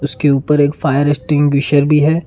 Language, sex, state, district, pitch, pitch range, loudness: Hindi, male, Karnataka, Bangalore, 145 Hz, 140-150 Hz, -13 LUFS